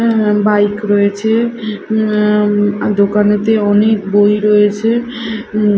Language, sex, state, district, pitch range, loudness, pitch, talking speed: Bengali, female, Odisha, Khordha, 205-220 Hz, -13 LUFS, 210 Hz, 95 wpm